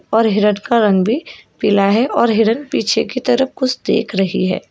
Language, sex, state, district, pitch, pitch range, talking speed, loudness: Hindi, female, Uttar Pradesh, Shamli, 225 Hz, 205-250 Hz, 205 wpm, -16 LUFS